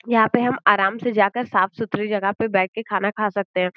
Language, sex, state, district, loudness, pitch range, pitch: Hindi, female, Uttar Pradesh, Gorakhpur, -20 LUFS, 195-225 Hz, 210 Hz